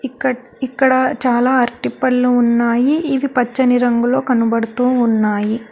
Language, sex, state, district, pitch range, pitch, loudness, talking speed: Telugu, female, Telangana, Hyderabad, 235-260 Hz, 250 Hz, -15 LUFS, 105 wpm